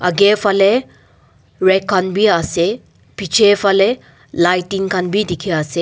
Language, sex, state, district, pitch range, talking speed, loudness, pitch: Nagamese, male, Nagaland, Dimapur, 180-205 Hz, 135 wpm, -15 LUFS, 195 Hz